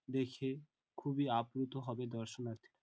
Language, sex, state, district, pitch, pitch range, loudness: Bengali, male, West Bengal, Dakshin Dinajpur, 130 Hz, 120-135 Hz, -41 LUFS